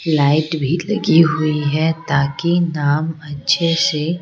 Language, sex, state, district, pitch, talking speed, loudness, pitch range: Hindi, female, Bihar, Patna, 155 Hz, 130 wpm, -17 LUFS, 145-170 Hz